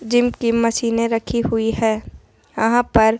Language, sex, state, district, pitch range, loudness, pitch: Hindi, male, Rajasthan, Jaipur, 225-235 Hz, -19 LUFS, 230 Hz